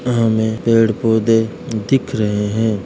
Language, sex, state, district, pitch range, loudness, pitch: Hindi, male, Uttar Pradesh, Jalaun, 110-115 Hz, -16 LUFS, 110 Hz